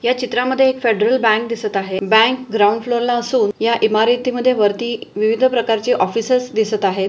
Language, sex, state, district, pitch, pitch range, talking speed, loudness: Marathi, female, Maharashtra, Pune, 230 Hz, 215-245 Hz, 185 wpm, -16 LUFS